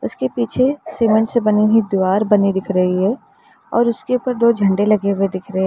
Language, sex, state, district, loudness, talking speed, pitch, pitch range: Hindi, female, Uttar Pradesh, Lalitpur, -17 LUFS, 220 wpm, 210 Hz, 190-235 Hz